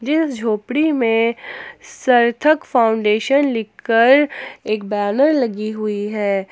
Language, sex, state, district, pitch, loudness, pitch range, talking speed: Hindi, female, Jharkhand, Ranchi, 235 Hz, -17 LUFS, 215-285 Hz, 100 wpm